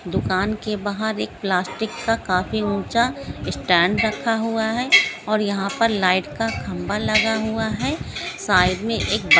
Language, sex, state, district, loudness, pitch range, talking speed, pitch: Hindi, female, Andhra Pradesh, Krishna, -21 LUFS, 190-225 Hz, 155 wpm, 215 Hz